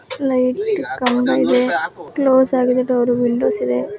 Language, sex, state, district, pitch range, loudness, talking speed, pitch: Kannada, female, Karnataka, Dakshina Kannada, 245-265 Hz, -17 LUFS, 120 wpm, 255 Hz